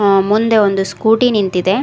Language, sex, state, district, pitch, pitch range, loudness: Kannada, female, Karnataka, Koppal, 205 Hz, 195-220 Hz, -13 LUFS